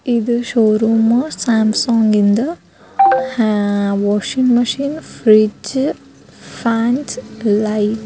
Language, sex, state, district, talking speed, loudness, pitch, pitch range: Kannada, male, Karnataka, Dharwad, 75 wpm, -15 LUFS, 230 Hz, 215-250 Hz